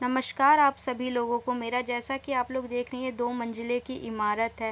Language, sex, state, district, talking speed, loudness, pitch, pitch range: Hindi, female, Bihar, Gopalganj, 230 wpm, -28 LUFS, 250 Hz, 240-260 Hz